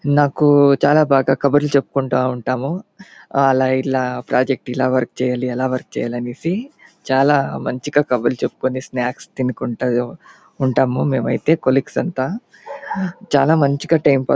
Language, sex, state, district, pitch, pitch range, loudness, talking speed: Telugu, male, Andhra Pradesh, Chittoor, 135 Hz, 125-145 Hz, -18 LUFS, 110 wpm